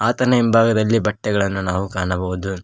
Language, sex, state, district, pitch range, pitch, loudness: Kannada, male, Karnataka, Koppal, 95-115 Hz, 105 Hz, -18 LUFS